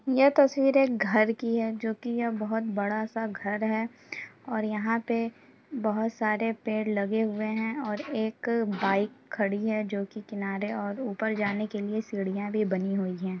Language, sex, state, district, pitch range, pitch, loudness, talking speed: Hindi, female, Uttar Pradesh, Etah, 205-230 Hz, 220 Hz, -29 LUFS, 170 wpm